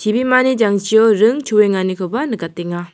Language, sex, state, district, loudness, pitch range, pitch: Garo, female, Meghalaya, South Garo Hills, -15 LUFS, 185-235 Hz, 215 Hz